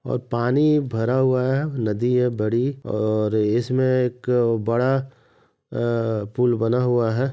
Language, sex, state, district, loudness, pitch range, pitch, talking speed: Hindi, male, Bihar, Madhepura, -21 LUFS, 115-130 Hz, 125 Hz, 140 wpm